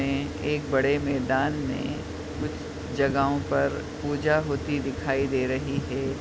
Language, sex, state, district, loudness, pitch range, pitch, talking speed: Hindi, male, Bihar, Madhepura, -27 LUFS, 135-145 Hz, 140 Hz, 135 wpm